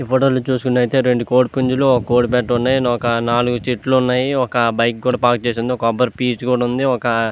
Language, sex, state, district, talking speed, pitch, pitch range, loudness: Telugu, male, Andhra Pradesh, Visakhapatnam, 215 wpm, 125 Hz, 120-130 Hz, -17 LUFS